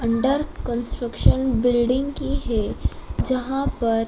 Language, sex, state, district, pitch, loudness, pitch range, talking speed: Hindi, male, Madhya Pradesh, Dhar, 245 Hz, -23 LUFS, 235-270 Hz, 105 wpm